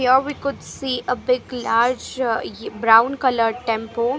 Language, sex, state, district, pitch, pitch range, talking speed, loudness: English, female, Punjab, Fazilka, 250 Hz, 230-260 Hz, 155 wpm, -20 LUFS